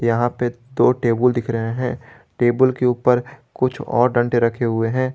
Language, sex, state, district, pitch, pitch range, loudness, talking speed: Hindi, male, Jharkhand, Garhwa, 120 Hz, 120-125 Hz, -19 LUFS, 185 wpm